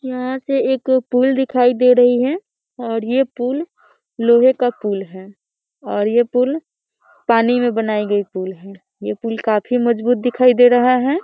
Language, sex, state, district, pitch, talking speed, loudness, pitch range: Hindi, female, Bihar, Muzaffarpur, 245 Hz, 170 wpm, -16 LUFS, 225-255 Hz